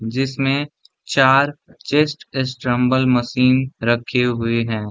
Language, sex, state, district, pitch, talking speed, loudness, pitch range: Hindi, male, Bihar, Gaya, 130 Hz, 110 wpm, -18 LUFS, 120-135 Hz